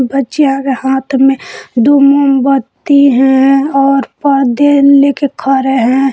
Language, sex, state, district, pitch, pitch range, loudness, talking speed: Hindi, female, Jharkhand, Palamu, 275 Hz, 265-280 Hz, -10 LUFS, 100 wpm